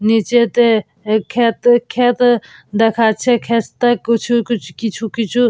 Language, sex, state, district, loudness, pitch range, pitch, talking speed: Bengali, female, West Bengal, Purulia, -15 LUFS, 220-240 Hz, 230 Hz, 100 wpm